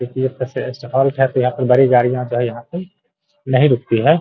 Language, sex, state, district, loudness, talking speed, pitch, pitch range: Hindi, male, Bihar, Gaya, -16 LUFS, 155 wpm, 130 Hz, 125-140 Hz